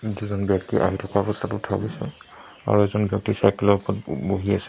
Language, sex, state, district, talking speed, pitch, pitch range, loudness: Assamese, male, Assam, Sonitpur, 190 wpm, 100 Hz, 100-105 Hz, -23 LUFS